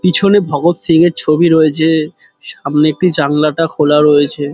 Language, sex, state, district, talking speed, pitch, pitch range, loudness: Bengali, male, West Bengal, Dakshin Dinajpur, 145 wpm, 155 Hz, 150-170 Hz, -11 LUFS